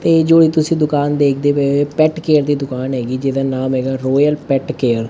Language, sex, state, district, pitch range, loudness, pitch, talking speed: Punjabi, male, Punjab, Fazilka, 130-155 Hz, -15 LUFS, 145 Hz, 245 wpm